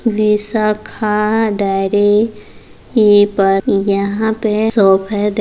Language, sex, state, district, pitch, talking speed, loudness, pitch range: Hindi, female, Bihar, Muzaffarpur, 210 Hz, 110 wpm, -14 LUFS, 200-215 Hz